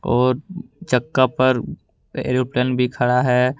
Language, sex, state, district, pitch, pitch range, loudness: Hindi, male, Jharkhand, Ranchi, 125 Hz, 125-130 Hz, -19 LUFS